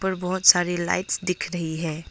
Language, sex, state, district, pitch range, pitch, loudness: Hindi, female, Arunachal Pradesh, Longding, 170-185 Hz, 175 Hz, -22 LUFS